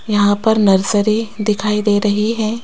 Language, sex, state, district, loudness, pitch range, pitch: Hindi, female, Rajasthan, Jaipur, -15 LUFS, 205-220 Hz, 210 Hz